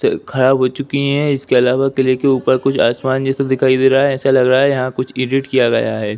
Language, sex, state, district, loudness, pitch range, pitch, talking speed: Hindi, male, Uttar Pradesh, Jalaun, -15 LUFS, 130-135 Hz, 135 Hz, 250 wpm